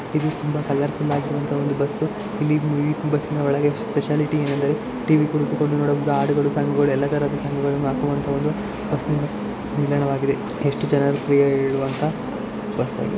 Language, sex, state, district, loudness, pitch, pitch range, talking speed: Kannada, male, Karnataka, Bellary, -22 LUFS, 145 Hz, 140-150 Hz, 155 wpm